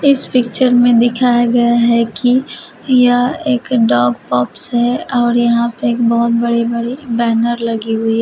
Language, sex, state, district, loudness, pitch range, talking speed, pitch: Hindi, female, Uttar Pradesh, Shamli, -14 LUFS, 235-245 Hz, 170 wpm, 235 Hz